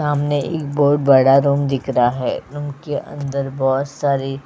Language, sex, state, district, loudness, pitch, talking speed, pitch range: Hindi, female, Uttar Pradesh, Jyotiba Phule Nagar, -18 LUFS, 140 Hz, 190 wpm, 135-145 Hz